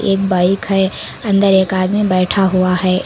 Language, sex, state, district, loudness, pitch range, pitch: Hindi, female, Karnataka, Koppal, -14 LUFS, 185-195 Hz, 190 Hz